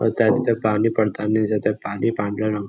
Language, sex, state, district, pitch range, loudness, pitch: Marathi, male, Maharashtra, Nagpur, 105-110 Hz, -21 LUFS, 110 Hz